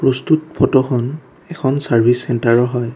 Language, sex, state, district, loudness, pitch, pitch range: Assamese, male, Assam, Kamrup Metropolitan, -16 LUFS, 130 Hz, 120-140 Hz